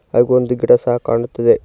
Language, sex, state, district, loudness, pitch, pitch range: Kannada, male, Karnataka, Koppal, -15 LUFS, 120 Hz, 120-125 Hz